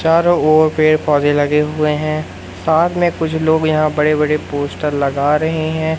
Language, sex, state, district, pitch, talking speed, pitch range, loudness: Hindi, male, Madhya Pradesh, Katni, 155 Hz, 180 wpm, 150-160 Hz, -15 LUFS